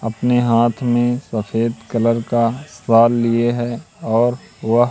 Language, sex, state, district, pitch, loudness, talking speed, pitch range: Hindi, male, Madhya Pradesh, Katni, 120 Hz, -17 LUFS, 120 wpm, 115-120 Hz